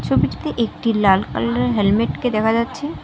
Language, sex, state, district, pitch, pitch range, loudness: Bengali, female, West Bengal, Alipurduar, 220 Hz, 195-235 Hz, -19 LUFS